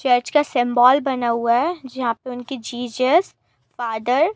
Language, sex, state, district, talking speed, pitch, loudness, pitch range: Hindi, female, Uttar Pradesh, Gorakhpur, 165 wpm, 250 Hz, -20 LUFS, 240-270 Hz